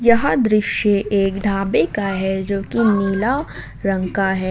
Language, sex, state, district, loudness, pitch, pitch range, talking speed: Hindi, female, Jharkhand, Ranchi, -18 LUFS, 200 Hz, 195-220 Hz, 160 wpm